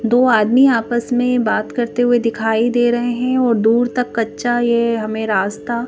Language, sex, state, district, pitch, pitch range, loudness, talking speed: Hindi, female, Madhya Pradesh, Bhopal, 240 Hz, 225-245 Hz, -16 LUFS, 185 wpm